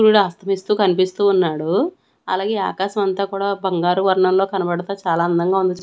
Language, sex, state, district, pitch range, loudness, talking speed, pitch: Telugu, female, Andhra Pradesh, Annamaya, 180-200 Hz, -19 LUFS, 135 wpm, 190 Hz